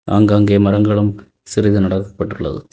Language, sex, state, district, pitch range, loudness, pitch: Tamil, male, Tamil Nadu, Kanyakumari, 100-105 Hz, -15 LUFS, 105 Hz